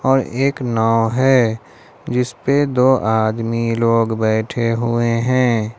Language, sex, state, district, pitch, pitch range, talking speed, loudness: Hindi, male, Jharkhand, Ranchi, 115 Hz, 115-130 Hz, 125 wpm, -17 LUFS